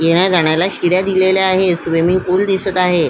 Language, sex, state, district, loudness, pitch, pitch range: Marathi, female, Maharashtra, Solapur, -14 LUFS, 185 Hz, 170-190 Hz